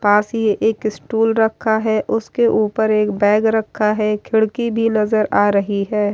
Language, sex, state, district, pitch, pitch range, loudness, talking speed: Hindi, female, Bihar, Kishanganj, 215 Hz, 210-220 Hz, -17 LUFS, 175 wpm